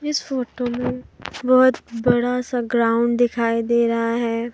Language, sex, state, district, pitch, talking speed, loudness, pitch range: Hindi, female, Jharkhand, Deoghar, 240 Hz, 145 wpm, -20 LUFS, 235-250 Hz